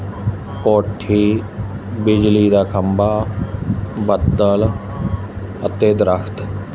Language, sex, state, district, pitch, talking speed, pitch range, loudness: Punjabi, male, Punjab, Fazilka, 100 Hz, 60 wpm, 100-105 Hz, -17 LUFS